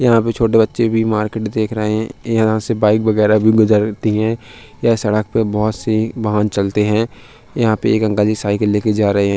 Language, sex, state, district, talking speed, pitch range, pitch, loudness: Hindi, male, Uttar Pradesh, Hamirpur, 220 wpm, 105-115 Hz, 110 Hz, -16 LUFS